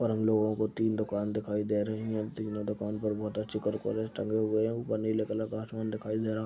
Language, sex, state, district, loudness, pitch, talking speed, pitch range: Hindi, male, Uttar Pradesh, Deoria, -32 LUFS, 110 Hz, 250 wpm, 105-110 Hz